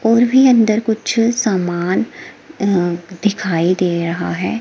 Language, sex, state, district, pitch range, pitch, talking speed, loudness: Hindi, female, Himachal Pradesh, Shimla, 175-230 Hz, 200 Hz, 130 wpm, -16 LUFS